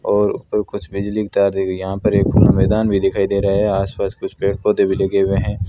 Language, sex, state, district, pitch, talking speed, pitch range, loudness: Hindi, male, Rajasthan, Bikaner, 100 Hz, 230 wpm, 95-105 Hz, -17 LUFS